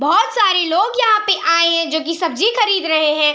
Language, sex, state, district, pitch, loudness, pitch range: Hindi, female, Bihar, Araria, 335 Hz, -15 LUFS, 315-415 Hz